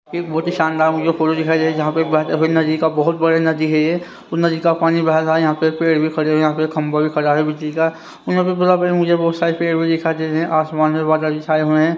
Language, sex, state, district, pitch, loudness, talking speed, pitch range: Hindi, male, Haryana, Rohtak, 160 Hz, -17 LUFS, 275 wpm, 155-165 Hz